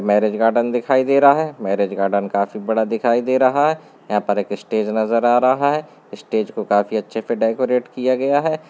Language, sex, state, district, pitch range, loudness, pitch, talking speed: Hindi, male, Bihar, Gopalganj, 105-130 Hz, -18 LUFS, 115 Hz, 215 wpm